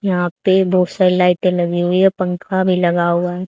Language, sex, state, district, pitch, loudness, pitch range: Hindi, female, Haryana, Charkhi Dadri, 180 Hz, -16 LUFS, 175-185 Hz